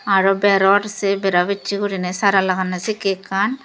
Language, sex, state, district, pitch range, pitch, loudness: Chakma, female, Tripura, Dhalai, 190-200 Hz, 195 Hz, -18 LUFS